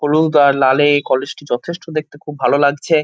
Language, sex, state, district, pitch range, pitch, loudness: Bengali, male, West Bengal, North 24 Parganas, 135-155 Hz, 145 Hz, -15 LUFS